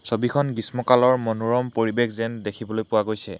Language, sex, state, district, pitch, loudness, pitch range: Assamese, male, Assam, Hailakandi, 115 Hz, -23 LUFS, 110-125 Hz